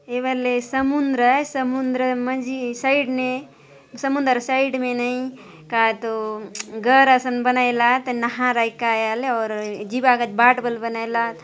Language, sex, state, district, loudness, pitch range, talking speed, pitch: Halbi, female, Chhattisgarh, Bastar, -20 LUFS, 230-260 Hz, 175 wpm, 250 Hz